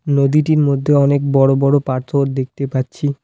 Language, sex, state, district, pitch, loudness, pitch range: Bengali, male, West Bengal, Alipurduar, 140 Hz, -15 LUFS, 135-145 Hz